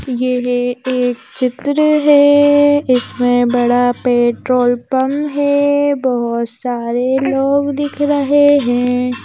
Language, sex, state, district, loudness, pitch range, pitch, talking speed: Hindi, female, Madhya Pradesh, Bhopal, -14 LUFS, 245-285 Hz, 255 Hz, 95 wpm